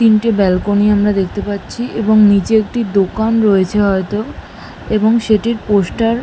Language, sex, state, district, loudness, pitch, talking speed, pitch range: Bengali, female, West Bengal, Malda, -14 LUFS, 210 Hz, 145 wpm, 200-225 Hz